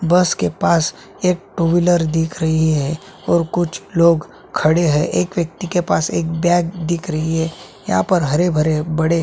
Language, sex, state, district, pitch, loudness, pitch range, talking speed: Hindi, male, Chhattisgarh, Sukma, 165 Hz, -18 LUFS, 160-175 Hz, 175 wpm